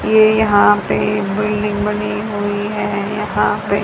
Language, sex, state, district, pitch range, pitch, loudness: Hindi, female, Haryana, Charkhi Dadri, 205-210 Hz, 210 Hz, -16 LUFS